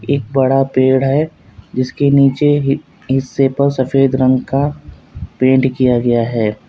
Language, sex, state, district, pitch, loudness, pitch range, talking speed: Hindi, male, Uttar Pradesh, Lalitpur, 135 Hz, -14 LUFS, 130-140 Hz, 145 wpm